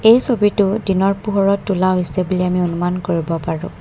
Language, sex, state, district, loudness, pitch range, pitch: Assamese, female, Assam, Kamrup Metropolitan, -17 LUFS, 180-200 Hz, 185 Hz